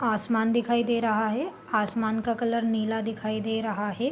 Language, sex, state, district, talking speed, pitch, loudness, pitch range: Hindi, female, Bihar, Gopalganj, 220 wpm, 225 Hz, -27 LUFS, 220-235 Hz